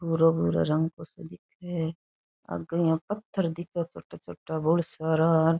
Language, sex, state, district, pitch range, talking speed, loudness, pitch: Rajasthani, female, Rajasthan, Churu, 160-170 Hz, 150 wpm, -28 LUFS, 165 Hz